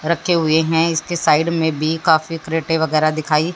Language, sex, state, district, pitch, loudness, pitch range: Hindi, female, Haryana, Jhajjar, 160 Hz, -17 LUFS, 155-165 Hz